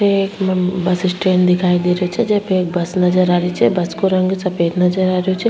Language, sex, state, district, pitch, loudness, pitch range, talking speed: Rajasthani, female, Rajasthan, Churu, 185 Hz, -16 LUFS, 180-190 Hz, 250 wpm